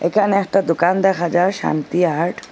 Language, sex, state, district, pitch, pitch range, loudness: Bengali, female, Assam, Hailakandi, 180 Hz, 170-195 Hz, -17 LUFS